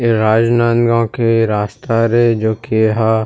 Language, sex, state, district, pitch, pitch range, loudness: Chhattisgarhi, male, Chhattisgarh, Rajnandgaon, 115 Hz, 110-115 Hz, -14 LUFS